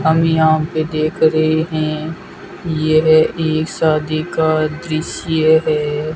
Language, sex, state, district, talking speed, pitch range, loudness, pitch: Hindi, male, Rajasthan, Bikaner, 115 wpm, 155-160 Hz, -16 LUFS, 155 Hz